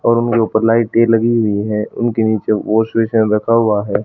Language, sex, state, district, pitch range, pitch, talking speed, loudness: Hindi, female, Haryana, Charkhi Dadri, 110-115 Hz, 110 Hz, 190 wpm, -15 LUFS